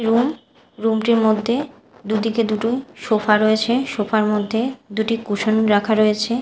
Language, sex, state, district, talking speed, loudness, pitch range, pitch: Bengali, female, Odisha, Malkangiri, 140 wpm, -19 LUFS, 215-235 Hz, 220 Hz